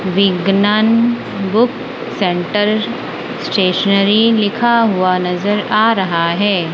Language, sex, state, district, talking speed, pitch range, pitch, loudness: Hindi, female, Punjab, Kapurthala, 90 wpm, 185-225 Hz, 205 Hz, -14 LUFS